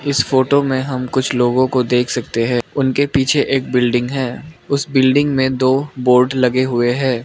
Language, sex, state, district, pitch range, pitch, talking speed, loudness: Hindi, male, Arunachal Pradesh, Lower Dibang Valley, 125-135 Hz, 130 Hz, 190 wpm, -16 LUFS